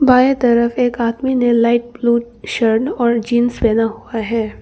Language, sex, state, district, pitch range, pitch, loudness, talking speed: Hindi, female, Arunachal Pradesh, Longding, 230-245 Hz, 235 Hz, -16 LUFS, 170 wpm